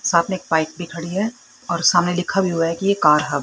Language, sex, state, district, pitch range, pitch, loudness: Hindi, female, Haryana, Rohtak, 165-190 Hz, 175 Hz, -19 LUFS